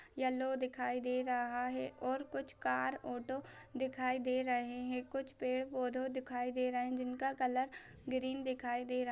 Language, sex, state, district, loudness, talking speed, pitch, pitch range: Hindi, female, Chhattisgarh, Raigarh, -39 LUFS, 170 wpm, 255 Hz, 250-260 Hz